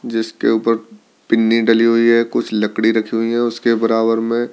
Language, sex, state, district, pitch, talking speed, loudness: Hindi, male, Delhi, New Delhi, 115 Hz, 185 wpm, -16 LUFS